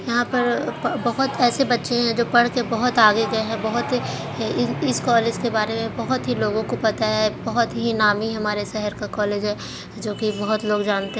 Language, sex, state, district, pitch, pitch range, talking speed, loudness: Hindi, female, Bihar, Jahanabad, 225 Hz, 215-240 Hz, 215 wpm, -21 LUFS